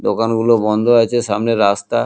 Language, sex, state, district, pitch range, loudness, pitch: Bengali, male, West Bengal, Kolkata, 105-115 Hz, -15 LUFS, 115 Hz